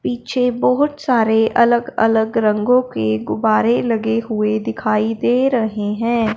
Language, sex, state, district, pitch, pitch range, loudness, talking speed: Hindi, female, Punjab, Fazilka, 225 Hz, 215-245 Hz, -17 LUFS, 130 wpm